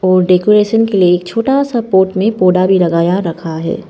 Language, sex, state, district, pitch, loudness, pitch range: Hindi, female, Arunachal Pradesh, Papum Pare, 185 Hz, -12 LUFS, 180-210 Hz